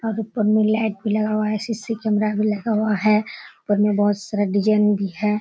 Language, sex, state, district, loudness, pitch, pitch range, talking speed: Hindi, female, Bihar, Kishanganj, -20 LUFS, 215 Hz, 205-215 Hz, 235 wpm